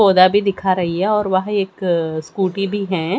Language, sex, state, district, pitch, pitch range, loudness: Hindi, female, Haryana, Charkhi Dadri, 190 Hz, 180-200 Hz, -18 LUFS